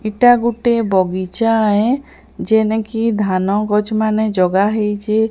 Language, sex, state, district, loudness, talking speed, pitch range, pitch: Odia, female, Odisha, Sambalpur, -16 LUFS, 100 wpm, 205-225 Hz, 215 Hz